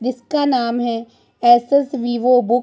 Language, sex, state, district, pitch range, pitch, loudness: Hindi, male, Punjab, Pathankot, 240-255 Hz, 245 Hz, -17 LUFS